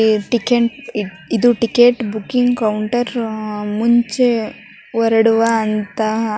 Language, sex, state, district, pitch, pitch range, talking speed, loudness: Kannada, female, Karnataka, Mysore, 225 Hz, 215-240 Hz, 85 wpm, -16 LUFS